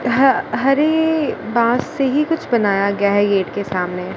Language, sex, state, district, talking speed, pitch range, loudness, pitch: Hindi, female, Gujarat, Gandhinagar, 175 wpm, 200-275 Hz, -17 LUFS, 235 Hz